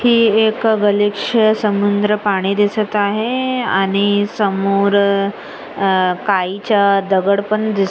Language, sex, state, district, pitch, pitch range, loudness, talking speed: Marathi, female, Maharashtra, Sindhudurg, 205 Hz, 195-215 Hz, -15 LUFS, 105 wpm